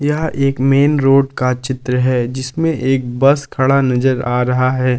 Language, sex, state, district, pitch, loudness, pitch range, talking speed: Hindi, male, Jharkhand, Palamu, 130 Hz, -15 LUFS, 125-140 Hz, 180 wpm